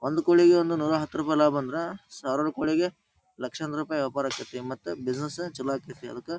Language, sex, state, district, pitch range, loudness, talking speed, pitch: Kannada, male, Karnataka, Dharwad, 135-170 Hz, -27 LUFS, 170 wpm, 155 Hz